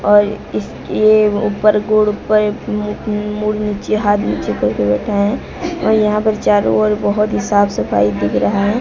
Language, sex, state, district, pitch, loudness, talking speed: Hindi, female, Odisha, Sambalpur, 210 Hz, -15 LUFS, 170 wpm